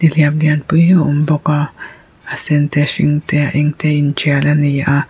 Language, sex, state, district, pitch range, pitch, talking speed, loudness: Mizo, female, Mizoram, Aizawl, 145-155 Hz, 150 Hz, 235 wpm, -14 LUFS